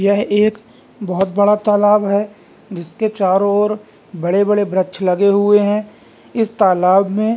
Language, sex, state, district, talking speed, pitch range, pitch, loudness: Hindi, male, Bihar, Vaishali, 145 wpm, 190-210 Hz, 205 Hz, -15 LUFS